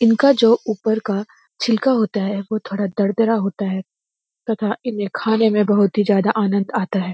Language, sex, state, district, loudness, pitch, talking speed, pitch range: Hindi, female, Uttarakhand, Uttarkashi, -19 LUFS, 215 Hz, 185 wpm, 200-225 Hz